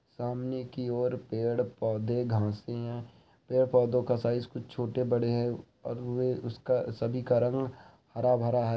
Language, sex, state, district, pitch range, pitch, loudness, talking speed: Hindi, male, Bihar, Saharsa, 120-125 Hz, 120 Hz, -31 LUFS, 155 wpm